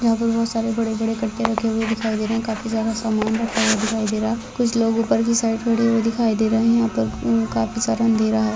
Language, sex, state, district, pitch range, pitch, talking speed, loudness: Hindi, female, Rajasthan, Nagaur, 215-230 Hz, 225 Hz, 275 wpm, -20 LUFS